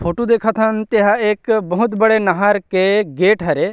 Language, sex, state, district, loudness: Chhattisgarhi, male, Chhattisgarh, Rajnandgaon, -15 LUFS